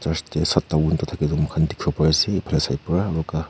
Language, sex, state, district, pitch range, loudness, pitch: Nagamese, male, Nagaland, Kohima, 80-85 Hz, -22 LUFS, 80 Hz